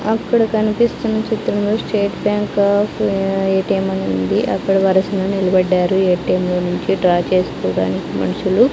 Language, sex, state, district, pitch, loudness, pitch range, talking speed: Telugu, female, Andhra Pradesh, Sri Satya Sai, 195 Hz, -17 LUFS, 185-210 Hz, 125 wpm